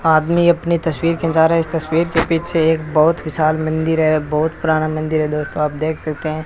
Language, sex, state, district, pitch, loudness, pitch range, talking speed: Hindi, male, Rajasthan, Bikaner, 160 Hz, -17 LUFS, 155-165 Hz, 225 wpm